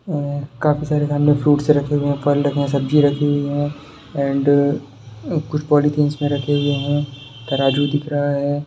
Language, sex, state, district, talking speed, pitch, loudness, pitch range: Hindi, male, Bihar, Darbhanga, 180 wpm, 145 Hz, -18 LUFS, 140-145 Hz